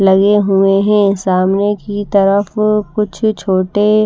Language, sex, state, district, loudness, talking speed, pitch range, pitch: Hindi, female, Himachal Pradesh, Shimla, -13 LUFS, 120 wpm, 195-210 Hz, 200 Hz